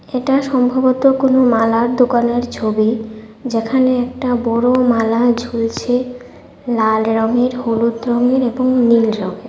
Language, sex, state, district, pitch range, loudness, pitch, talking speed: Bengali, female, Tripura, West Tripura, 225-255 Hz, -15 LUFS, 240 Hz, 115 wpm